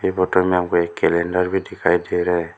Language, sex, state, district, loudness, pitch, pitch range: Hindi, male, Arunachal Pradesh, Lower Dibang Valley, -19 LUFS, 90 Hz, 85-95 Hz